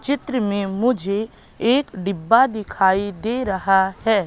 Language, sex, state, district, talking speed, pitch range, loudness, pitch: Hindi, female, Madhya Pradesh, Katni, 125 wpm, 195-240 Hz, -20 LUFS, 205 Hz